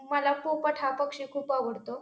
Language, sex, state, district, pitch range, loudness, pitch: Marathi, female, Maharashtra, Pune, 270-285 Hz, -30 LUFS, 280 Hz